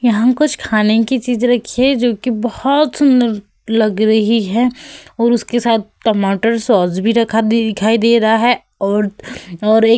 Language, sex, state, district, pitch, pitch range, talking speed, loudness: Hindi, female, Uttar Pradesh, Hamirpur, 230 Hz, 220-245 Hz, 170 wpm, -14 LUFS